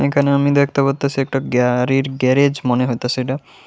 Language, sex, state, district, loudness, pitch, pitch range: Bengali, female, Tripura, West Tripura, -17 LUFS, 135 Hz, 125-140 Hz